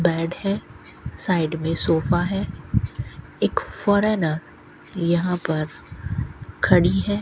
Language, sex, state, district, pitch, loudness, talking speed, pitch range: Hindi, female, Rajasthan, Bikaner, 170 Hz, -23 LUFS, 100 wpm, 160-180 Hz